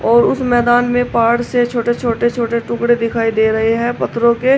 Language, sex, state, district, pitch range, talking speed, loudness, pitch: Hindi, female, Uttar Pradesh, Shamli, 230-240 Hz, 225 wpm, -15 LUFS, 235 Hz